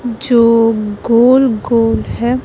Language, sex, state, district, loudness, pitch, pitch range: Hindi, female, Himachal Pradesh, Shimla, -12 LUFS, 235 Hz, 225-245 Hz